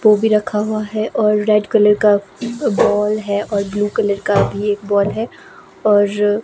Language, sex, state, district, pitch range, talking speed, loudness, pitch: Hindi, female, Himachal Pradesh, Shimla, 205-215 Hz, 195 wpm, -16 LUFS, 210 Hz